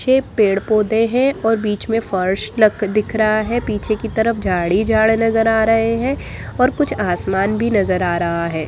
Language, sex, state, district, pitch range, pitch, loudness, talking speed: Hindi, female, Bihar, Jamui, 195-225 Hz, 220 Hz, -17 LUFS, 200 wpm